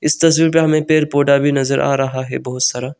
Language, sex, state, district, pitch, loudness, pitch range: Hindi, male, Arunachal Pradesh, Longding, 140 Hz, -15 LUFS, 135-155 Hz